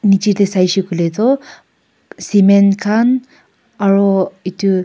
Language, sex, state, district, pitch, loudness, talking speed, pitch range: Nagamese, female, Nagaland, Kohima, 200 Hz, -14 LUFS, 100 wpm, 195-225 Hz